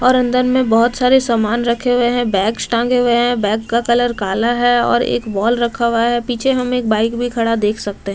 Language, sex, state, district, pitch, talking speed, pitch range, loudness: Hindi, female, Delhi, New Delhi, 235 Hz, 245 wpm, 230-245 Hz, -15 LUFS